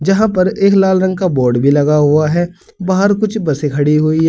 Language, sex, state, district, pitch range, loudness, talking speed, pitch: Hindi, male, Uttar Pradesh, Saharanpur, 150-195 Hz, -13 LUFS, 240 wpm, 175 Hz